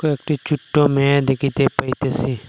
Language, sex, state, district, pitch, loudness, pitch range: Bengali, male, Assam, Hailakandi, 140 Hz, -19 LUFS, 135-150 Hz